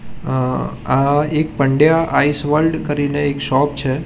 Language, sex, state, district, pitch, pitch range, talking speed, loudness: Gujarati, male, Gujarat, Gandhinagar, 145 Hz, 135-150 Hz, 150 wpm, -17 LUFS